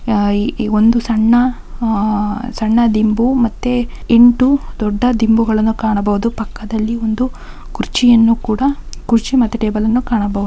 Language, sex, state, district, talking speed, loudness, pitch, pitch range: Kannada, female, Karnataka, Mysore, 110 wpm, -14 LUFS, 225 Hz, 215-245 Hz